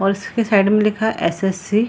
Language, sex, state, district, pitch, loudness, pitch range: Hindi, female, Bihar, Samastipur, 205 Hz, -18 LUFS, 195-220 Hz